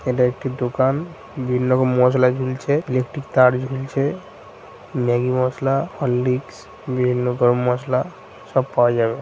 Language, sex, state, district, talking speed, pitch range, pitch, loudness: Bengali, male, West Bengal, Kolkata, 125 wpm, 125-135 Hz, 125 Hz, -20 LUFS